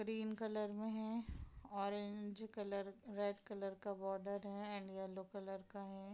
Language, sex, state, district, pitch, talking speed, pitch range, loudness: Hindi, female, Bihar, Madhepura, 200 Hz, 155 wpm, 195-215 Hz, -46 LUFS